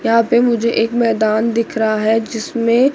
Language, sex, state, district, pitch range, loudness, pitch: Hindi, female, Chandigarh, Chandigarh, 225-235 Hz, -16 LUFS, 230 Hz